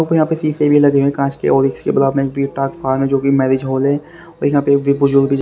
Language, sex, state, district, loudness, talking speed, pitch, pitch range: Hindi, male, Haryana, Rohtak, -15 LUFS, 230 wpm, 140 Hz, 135-145 Hz